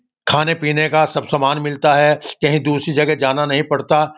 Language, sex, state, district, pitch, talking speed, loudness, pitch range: Hindi, male, Uttar Pradesh, Muzaffarnagar, 150 Hz, 170 wpm, -16 LUFS, 145-155 Hz